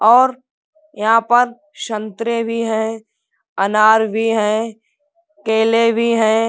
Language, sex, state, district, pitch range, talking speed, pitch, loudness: Hindi, male, Uttar Pradesh, Budaun, 220-240 Hz, 90 wpm, 225 Hz, -16 LUFS